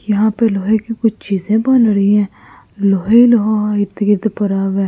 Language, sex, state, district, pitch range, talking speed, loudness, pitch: Hindi, female, Delhi, New Delhi, 200-220 Hz, 185 wpm, -14 LUFS, 210 Hz